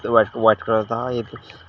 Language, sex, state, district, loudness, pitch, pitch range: Hindi, male, Uttar Pradesh, Shamli, -20 LUFS, 110 Hz, 105-115 Hz